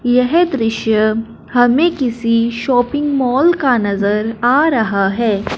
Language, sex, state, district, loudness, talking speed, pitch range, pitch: Hindi, female, Punjab, Fazilka, -15 LUFS, 120 wpm, 225-270 Hz, 245 Hz